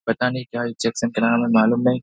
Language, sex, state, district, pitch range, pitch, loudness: Hindi, male, Bihar, Saharsa, 115-125 Hz, 120 Hz, -20 LUFS